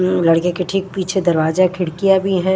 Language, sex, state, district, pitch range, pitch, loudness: Hindi, female, Punjab, Kapurthala, 175-190 Hz, 185 Hz, -17 LUFS